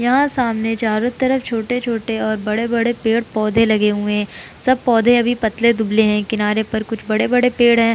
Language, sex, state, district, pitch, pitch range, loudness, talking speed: Hindi, female, Uttar Pradesh, Jalaun, 230 Hz, 215-240 Hz, -17 LUFS, 175 wpm